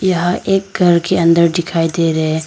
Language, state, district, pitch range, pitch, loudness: Hindi, Arunachal Pradesh, Lower Dibang Valley, 165-180 Hz, 170 Hz, -14 LUFS